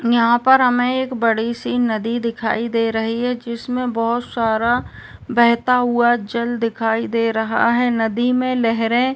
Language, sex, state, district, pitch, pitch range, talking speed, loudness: Hindi, male, Uttar Pradesh, Etah, 235 Hz, 230-245 Hz, 165 wpm, -18 LUFS